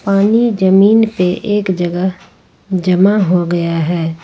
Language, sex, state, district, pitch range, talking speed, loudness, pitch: Hindi, female, Jharkhand, Ranchi, 175-205 Hz, 125 wpm, -13 LUFS, 185 Hz